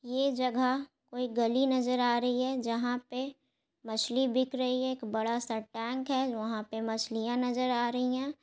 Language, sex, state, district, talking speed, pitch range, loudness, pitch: Hindi, female, Bihar, Gaya, 165 wpm, 230-260 Hz, -31 LUFS, 250 Hz